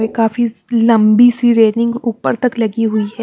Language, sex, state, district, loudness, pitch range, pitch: Hindi, female, Haryana, Charkhi Dadri, -13 LUFS, 220-235 Hz, 230 Hz